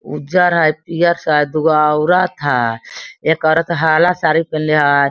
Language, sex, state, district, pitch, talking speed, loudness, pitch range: Hindi, female, Bihar, Sitamarhi, 155 Hz, 150 wpm, -14 LUFS, 150-170 Hz